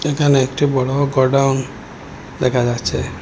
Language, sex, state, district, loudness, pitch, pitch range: Bengali, male, Assam, Hailakandi, -17 LUFS, 135 Hz, 125-140 Hz